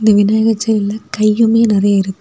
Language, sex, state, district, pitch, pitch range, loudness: Tamil, female, Tamil Nadu, Kanyakumari, 215 Hz, 205-220 Hz, -13 LUFS